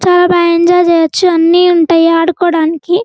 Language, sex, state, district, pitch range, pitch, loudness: Telugu, female, Andhra Pradesh, Guntur, 330-355 Hz, 345 Hz, -9 LUFS